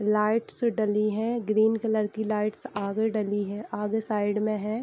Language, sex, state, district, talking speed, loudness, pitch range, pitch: Hindi, female, Bihar, East Champaran, 175 wpm, -27 LUFS, 210-220 Hz, 215 Hz